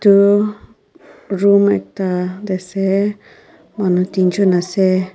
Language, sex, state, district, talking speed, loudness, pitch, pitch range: Nagamese, female, Nagaland, Dimapur, 95 wpm, -16 LUFS, 190 Hz, 185-200 Hz